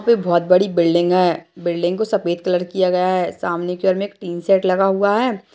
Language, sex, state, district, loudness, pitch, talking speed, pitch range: Hindi, female, Uttarakhand, Tehri Garhwal, -18 LUFS, 185 Hz, 250 wpm, 175-200 Hz